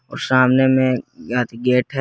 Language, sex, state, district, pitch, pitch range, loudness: Hindi, male, Jharkhand, Garhwa, 130 Hz, 125-130 Hz, -18 LUFS